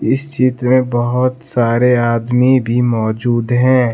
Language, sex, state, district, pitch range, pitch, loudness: Hindi, male, Jharkhand, Deoghar, 120-130 Hz, 125 Hz, -14 LUFS